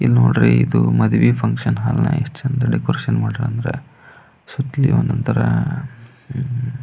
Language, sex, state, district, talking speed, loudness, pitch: Kannada, male, Karnataka, Belgaum, 125 wpm, -18 LUFS, 125 Hz